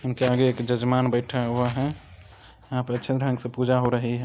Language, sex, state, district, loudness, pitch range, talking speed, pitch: Maithili, male, Bihar, Samastipur, -24 LUFS, 120-130 Hz, 240 wpm, 125 Hz